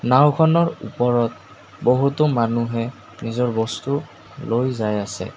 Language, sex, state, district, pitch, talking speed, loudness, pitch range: Assamese, male, Assam, Kamrup Metropolitan, 120 Hz, 100 wpm, -20 LUFS, 115-140 Hz